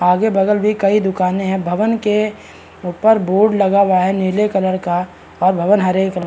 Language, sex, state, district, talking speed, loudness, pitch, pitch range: Hindi, male, Bihar, Araria, 190 wpm, -15 LUFS, 190 Hz, 185-210 Hz